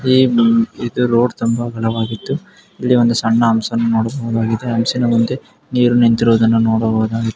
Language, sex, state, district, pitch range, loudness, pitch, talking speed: Kannada, male, Karnataka, Mysore, 115-125 Hz, -15 LUFS, 115 Hz, 115 wpm